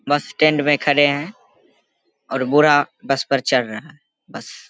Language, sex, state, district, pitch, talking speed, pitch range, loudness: Hindi, male, Bihar, Begusarai, 145 Hz, 180 wpm, 135-150 Hz, -18 LUFS